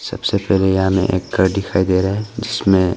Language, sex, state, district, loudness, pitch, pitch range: Hindi, male, Arunachal Pradesh, Longding, -17 LUFS, 95 Hz, 95-100 Hz